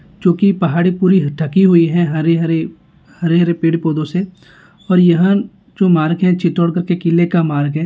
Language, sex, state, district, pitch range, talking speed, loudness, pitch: Hindi, male, Rajasthan, Nagaur, 165-185 Hz, 190 wpm, -14 LUFS, 175 Hz